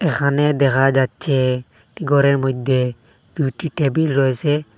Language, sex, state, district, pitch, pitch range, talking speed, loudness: Bengali, male, Assam, Hailakandi, 135 Hz, 130-145 Hz, 100 wpm, -18 LUFS